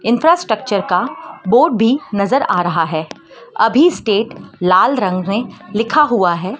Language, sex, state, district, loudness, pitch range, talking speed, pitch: Hindi, female, Madhya Pradesh, Dhar, -15 LUFS, 185-265 Hz, 145 wpm, 220 Hz